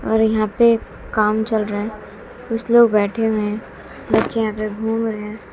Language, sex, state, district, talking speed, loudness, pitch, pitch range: Hindi, female, Bihar, West Champaran, 195 wpm, -19 LUFS, 220 Hz, 215-225 Hz